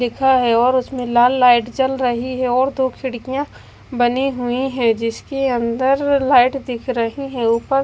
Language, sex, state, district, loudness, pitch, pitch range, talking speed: Hindi, female, Odisha, Malkangiri, -17 LUFS, 255 Hz, 240-265 Hz, 170 wpm